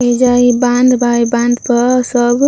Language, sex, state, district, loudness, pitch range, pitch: Bhojpuri, female, Uttar Pradesh, Ghazipur, -12 LUFS, 240-250 Hz, 245 Hz